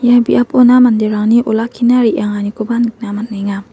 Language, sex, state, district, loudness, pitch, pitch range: Garo, female, Meghalaya, West Garo Hills, -12 LUFS, 225 Hz, 210-245 Hz